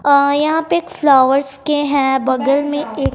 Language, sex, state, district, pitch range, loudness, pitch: Hindi, female, Bihar, West Champaran, 275-295 Hz, -15 LUFS, 285 Hz